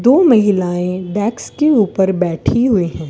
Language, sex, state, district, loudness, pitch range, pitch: Hindi, female, Rajasthan, Bikaner, -15 LUFS, 180-230 Hz, 190 Hz